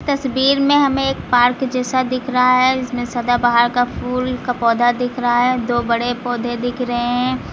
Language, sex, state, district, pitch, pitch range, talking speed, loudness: Hindi, female, Uttar Pradesh, Lucknow, 250 Hz, 240-255 Hz, 190 wpm, -17 LUFS